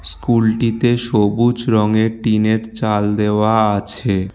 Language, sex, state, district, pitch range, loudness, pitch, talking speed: Bengali, male, West Bengal, Alipurduar, 105-115 Hz, -16 LUFS, 110 Hz, 95 wpm